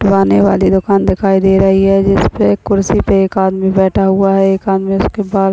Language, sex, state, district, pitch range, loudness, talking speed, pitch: Hindi, female, Uttar Pradesh, Deoria, 190-195 Hz, -12 LUFS, 225 wpm, 195 Hz